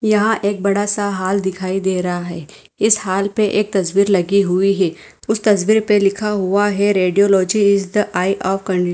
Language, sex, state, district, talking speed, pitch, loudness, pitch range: Hindi, female, Punjab, Fazilka, 200 wpm, 200 Hz, -16 LUFS, 190-210 Hz